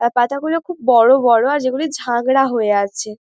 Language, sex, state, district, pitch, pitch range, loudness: Bengali, female, West Bengal, Dakshin Dinajpur, 250 Hz, 235-280 Hz, -16 LUFS